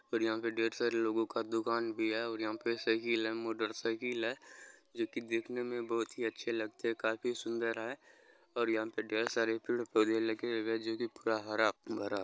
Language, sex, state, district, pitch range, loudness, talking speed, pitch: Hindi, male, Bihar, Araria, 110-115 Hz, -36 LUFS, 205 wpm, 115 Hz